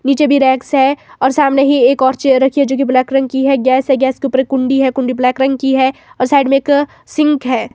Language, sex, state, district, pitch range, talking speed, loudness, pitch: Hindi, female, Himachal Pradesh, Shimla, 260-275 Hz, 280 wpm, -13 LUFS, 265 Hz